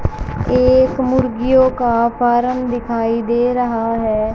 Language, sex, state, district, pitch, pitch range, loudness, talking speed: Hindi, female, Haryana, Jhajjar, 240 Hz, 230-255 Hz, -16 LUFS, 110 wpm